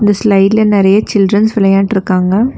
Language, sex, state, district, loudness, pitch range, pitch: Tamil, female, Tamil Nadu, Nilgiris, -10 LUFS, 195-210 Hz, 205 Hz